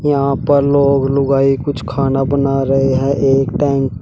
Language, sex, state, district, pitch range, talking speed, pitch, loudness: Hindi, male, Uttar Pradesh, Shamli, 135-140 Hz, 180 wpm, 135 Hz, -14 LUFS